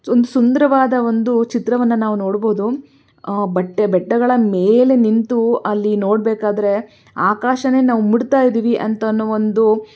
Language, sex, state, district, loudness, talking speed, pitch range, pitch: Kannada, female, Karnataka, Belgaum, -16 LUFS, 115 wpm, 210-245 Hz, 225 Hz